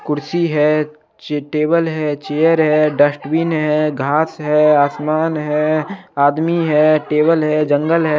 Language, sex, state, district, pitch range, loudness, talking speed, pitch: Hindi, male, Chandigarh, Chandigarh, 150-160 Hz, -16 LUFS, 140 wpm, 155 Hz